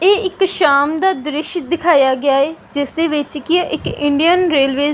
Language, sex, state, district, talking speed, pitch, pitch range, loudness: Punjabi, female, Punjab, Fazilka, 195 wpm, 305 Hz, 285-350 Hz, -15 LUFS